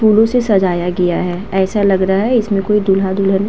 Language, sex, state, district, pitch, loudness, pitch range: Hindi, female, Uttar Pradesh, Hamirpur, 195 Hz, -14 LUFS, 190-210 Hz